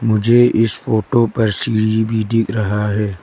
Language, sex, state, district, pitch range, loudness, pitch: Hindi, female, Arunachal Pradesh, Lower Dibang Valley, 105-115 Hz, -16 LUFS, 110 Hz